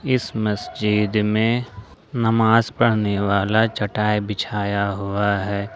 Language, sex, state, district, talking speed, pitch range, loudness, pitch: Hindi, male, Jharkhand, Ranchi, 105 wpm, 100-110 Hz, -20 LUFS, 105 Hz